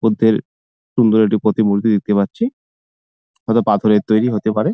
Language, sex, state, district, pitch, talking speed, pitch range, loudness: Bengali, male, West Bengal, Jalpaiguri, 110 Hz, 140 wpm, 105-110 Hz, -16 LUFS